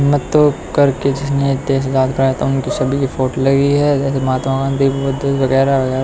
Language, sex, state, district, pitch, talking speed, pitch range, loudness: Hindi, male, Haryana, Rohtak, 135 Hz, 170 wpm, 135-140 Hz, -15 LUFS